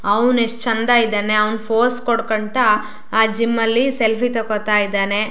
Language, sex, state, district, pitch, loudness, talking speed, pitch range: Kannada, female, Karnataka, Shimoga, 225 Hz, -17 LUFS, 145 wpm, 215-235 Hz